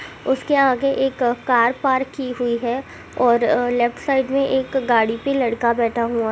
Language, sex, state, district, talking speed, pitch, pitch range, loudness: Hindi, female, Uttar Pradesh, Hamirpur, 180 wpm, 250 Hz, 235-270 Hz, -19 LUFS